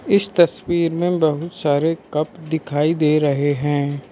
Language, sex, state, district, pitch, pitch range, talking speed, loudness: Hindi, male, Arunachal Pradesh, Lower Dibang Valley, 155 Hz, 145-170 Hz, 145 wpm, -19 LUFS